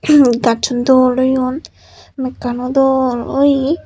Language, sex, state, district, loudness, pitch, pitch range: Chakma, female, Tripura, Unakoti, -14 LUFS, 260 Hz, 250-270 Hz